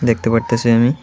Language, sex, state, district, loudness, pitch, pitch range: Bengali, male, Tripura, West Tripura, -15 LUFS, 115 Hz, 115-120 Hz